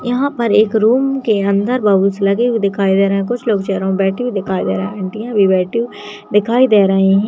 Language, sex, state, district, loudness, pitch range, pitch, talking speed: Hindi, female, Uttarakhand, Tehri Garhwal, -15 LUFS, 195-235 Hz, 205 Hz, 245 wpm